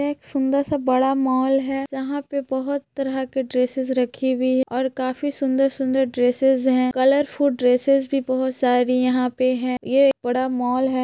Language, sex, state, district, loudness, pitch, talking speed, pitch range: Magahi, female, Bihar, Gaya, -21 LUFS, 260 Hz, 180 wpm, 255-275 Hz